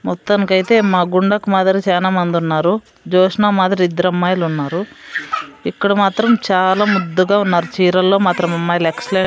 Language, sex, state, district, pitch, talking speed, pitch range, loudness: Telugu, female, Andhra Pradesh, Sri Satya Sai, 185 Hz, 140 wpm, 180-200 Hz, -15 LUFS